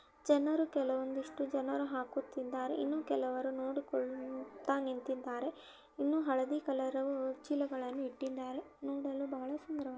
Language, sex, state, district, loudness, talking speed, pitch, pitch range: Kannada, female, Karnataka, Belgaum, -38 LUFS, 115 wpm, 270 Hz, 260-285 Hz